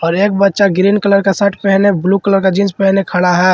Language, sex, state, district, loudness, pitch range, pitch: Hindi, male, Jharkhand, Ranchi, -12 LUFS, 190-200 Hz, 195 Hz